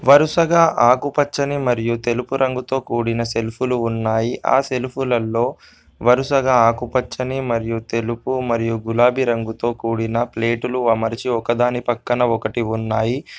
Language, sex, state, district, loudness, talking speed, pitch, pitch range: Telugu, male, Telangana, Komaram Bheem, -19 LUFS, 105 wpm, 120 Hz, 115-130 Hz